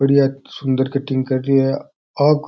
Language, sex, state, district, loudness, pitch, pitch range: Rajasthani, male, Rajasthan, Churu, -19 LUFS, 135 Hz, 130-140 Hz